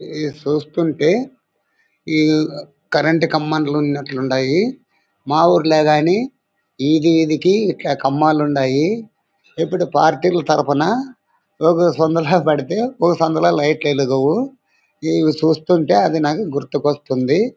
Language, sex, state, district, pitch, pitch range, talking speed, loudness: Telugu, male, Andhra Pradesh, Anantapur, 155 Hz, 145-175 Hz, 100 wpm, -17 LUFS